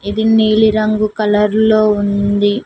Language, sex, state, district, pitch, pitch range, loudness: Telugu, female, Telangana, Mahabubabad, 215 Hz, 205-215 Hz, -13 LUFS